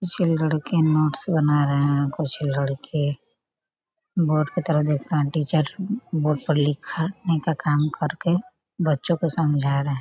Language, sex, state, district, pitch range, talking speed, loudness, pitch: Hindi, female, Bihar, Gopalganj, 145-170 Hz, 170 wpm, -21 LUFS, 155 Hz